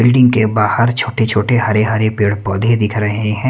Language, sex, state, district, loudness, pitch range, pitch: Hindi, male, Haryana, Rohtak, -14 LUFS, 105-120 Hz, 110 Hz